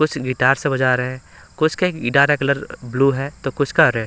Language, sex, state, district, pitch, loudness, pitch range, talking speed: Hindi, male, Bihar, Patna, 135 Hz, -19 LUFS, 130-145 Hz, 250 wpm